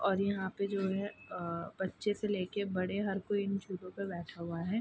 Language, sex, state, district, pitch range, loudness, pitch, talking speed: Hindi, female, Bihar, Saharsa, 185-200 Hz, -36 LUFS, 195 Hz, 225 wpm